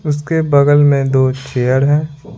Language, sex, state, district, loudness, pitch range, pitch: Hindi, male, Bihar, Patna, -13 LUFS, 135-150 Hz, 145 Hz